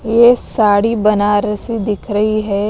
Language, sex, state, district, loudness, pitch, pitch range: Hindi, female, Bihar, West Champaran, -14 LUFS, 210 Hz, 205-225 Hz